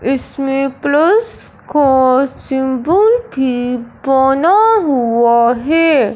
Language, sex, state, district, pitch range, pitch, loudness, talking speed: Hindi, male, Punjab, Fazilka, 255-320 Hz, 270 Hz, -13 LUFS, 80 wpm